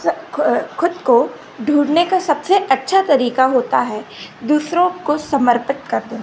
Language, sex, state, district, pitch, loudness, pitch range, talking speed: Hindi, female, Gujarat, Gandhinagar, 290 Hz, -17 LUFS, 260-345 Hz, 155 wpm